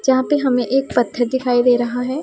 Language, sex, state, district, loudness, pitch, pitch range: Hindi, female, Punjab, Pathankot, -17 LUFS, 250 Hz, 245-265 Hz